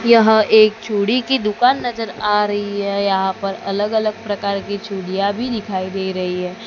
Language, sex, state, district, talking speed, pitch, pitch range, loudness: Hindi, female, Maharashtra, Gondia, 190 wpm, 205 Hz, 195-220 Hz, -18 LUFS